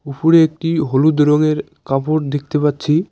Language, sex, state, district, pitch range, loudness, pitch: Bengali, male, West Bengal, Cooch Behar, 145-155 Hz, -16 LUFS, 150 Hz